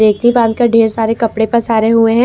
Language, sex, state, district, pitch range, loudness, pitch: Hindi, female, Jharkhand, Ranchi, 225-235 Hz, -12 LUFS, 230 Hz